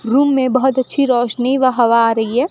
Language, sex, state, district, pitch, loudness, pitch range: Hindi, female, Rajasthan, Bikaner, 255 Hz, -15 LUFS, 240-265 Hz